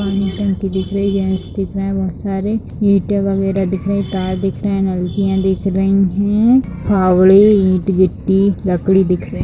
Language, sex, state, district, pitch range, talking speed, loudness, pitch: Hindi, female, Bihar, Gopalganj, 190-200 Hz, 165 wpm, -15 LUFS, 195 Hz